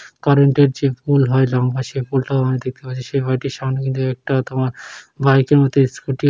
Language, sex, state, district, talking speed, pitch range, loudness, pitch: Bengali, male, West Bengal, Jalpaiguri, 190 wpm, 130-140 Hz, -18 LUFS, 135 Hz